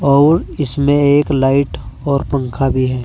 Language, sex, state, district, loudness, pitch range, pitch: Hindi, male, Uttar Pradesh, Saharanpur, -15 LUFS, 130-145 Hz, 140 Hz